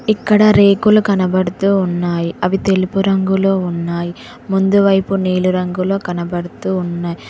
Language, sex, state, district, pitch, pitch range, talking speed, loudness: Telugu, female, Telangana, Mahabubabad, 190 Hz, 175-195 Hz, 115 wpm, -15 LUFS